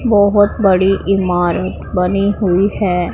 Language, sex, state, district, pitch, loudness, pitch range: Hindi, female, Punjab, Pathankot, 195 Hz, -14 LUFS, 180-205 Hz